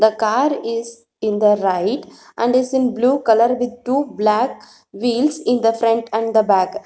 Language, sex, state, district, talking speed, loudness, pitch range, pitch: English, female, Telangana, Hyderabad, 185 wpm, -18 LUFS, 220-250 Hz, 230 Hz